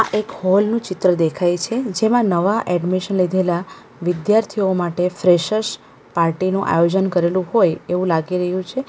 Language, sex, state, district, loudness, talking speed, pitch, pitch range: Gujarati, female, Gujarat, Valsad, -18 LUFS, 150 wpm, 185 Hz, 175-205 Hz